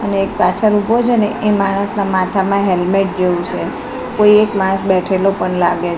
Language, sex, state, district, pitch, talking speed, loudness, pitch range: Gujarati, female, Gujarat, Gandhinagar, 195 Hz, 180 wpm, -15 LUFS, 185-210 Hz